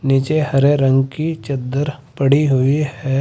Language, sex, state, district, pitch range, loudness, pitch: Hindi, male, Uttar Pradesh, Saharanpur, 135-145 Hz, -17 LUFS, 140 Hz